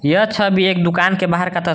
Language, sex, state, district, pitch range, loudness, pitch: Hindi, male, Jharkhand, Garhwa, 170-190 Hz, -16 LUFS, 180 Hz